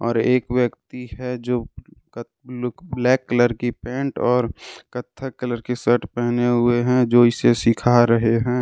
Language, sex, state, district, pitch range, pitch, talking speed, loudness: Hindi, male, Jharkhand, Deoghar, 120-125 Hz, 120 Hz, 155 wpm, -20 LUFS